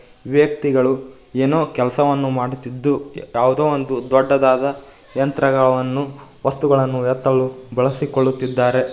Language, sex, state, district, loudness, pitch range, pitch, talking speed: Kannada, male, Karnataka, Koppal, -18 LUFS, 130-140 Hz, 130 Hz, 75 wpm